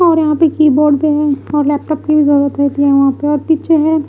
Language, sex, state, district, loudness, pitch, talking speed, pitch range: Hindi, female, Odisha, Malkangiri, -12 LUFS, 300 Hz, 220 wpm, 285-310 Hz